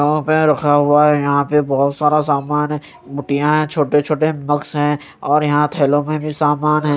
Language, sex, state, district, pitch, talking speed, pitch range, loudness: Hindi, male, Chandigarh, Chandigarh, 150 Hz, 205 wpm, 145-150 Hz, -16 LUFS